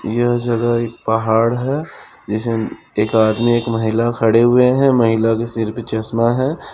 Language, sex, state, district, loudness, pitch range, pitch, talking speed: Hindi, male, Chhattisgarh, Bilaspur, -16 LUFS, 110-120 Hz, 115 Hz, 170 wpm